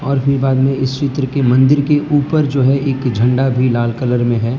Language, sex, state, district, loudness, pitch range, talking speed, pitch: Hindi, male, Gujarat, Valsad, -14 LUFS, 125-140 Hz, 250 wpm, 135 Hz